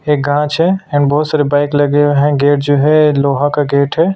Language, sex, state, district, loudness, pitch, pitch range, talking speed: Hindi, male, Chhattisgarh, Sukma, -12 LUFS, 145 Hz, 145-150 Hz, 245 wpm